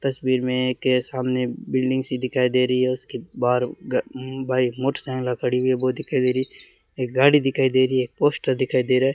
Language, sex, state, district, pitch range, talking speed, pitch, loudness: Hindi, male, Rajasthan, Bikaner, 125-130 Hz, 215 wpm, 130 Hz, -22 LUFS